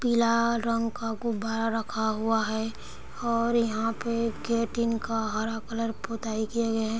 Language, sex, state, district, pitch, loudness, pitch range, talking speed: Hindi, female, Bihar, Sitamarhi, 225 Hz, -28 LUFS, 220-230 Hz, 165 wpm